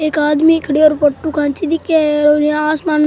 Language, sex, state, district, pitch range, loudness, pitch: Rajasthani, male, Rajasthan, Churu, 300-315 Hz, -14 LUFS, 305 Hz